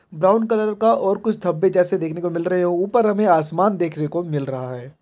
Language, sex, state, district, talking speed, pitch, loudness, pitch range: Hindi, male, Bihar, Jahanabad, 240 wpm, 180 Hz, -19 LUFS, 160-205 Hz